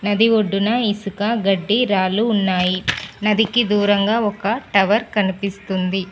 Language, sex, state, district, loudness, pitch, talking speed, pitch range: Telugu, female, Telangana, Mahabubabad, -18 LUFS, 205 Hz, 110 wpm, 195-220 Hz